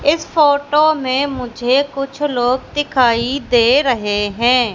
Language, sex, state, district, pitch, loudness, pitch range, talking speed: Hindi, female, Madhya Pradesh, Katni, 260 Hz, -15 LUFS, 245-285 Hz, 125 wpm